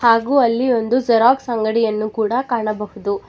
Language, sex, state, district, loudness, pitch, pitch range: Kannada, female, Karnataka, Bangalore, -17 LUFS, 230 Hz, 215-245 Hz